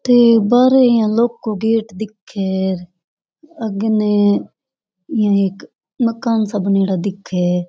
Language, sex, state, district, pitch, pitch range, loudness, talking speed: Rajasthani, female, Rajasthan, Churu, 215 Hz, 195-230 Hz, -16 LUFS, 135 wpm